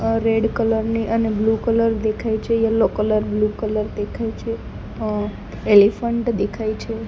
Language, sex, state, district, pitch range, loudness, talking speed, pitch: Gujarati, female, Gujarat, Gandhinagar, 215-225 Hz, -20 LUFS, 160 wpm, 220 Hz